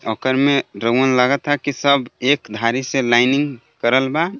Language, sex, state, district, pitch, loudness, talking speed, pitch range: Bhojpuri, male, Jharkhand, Palamu, 135 Hz, -17 LUFS, 165 wpm, 120-140 Hz